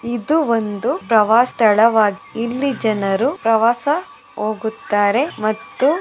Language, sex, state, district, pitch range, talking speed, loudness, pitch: Kannada, female, Karnataka, Mysore, 215-250 Hz, 90 wpm, -17 LUFS, 225 Hz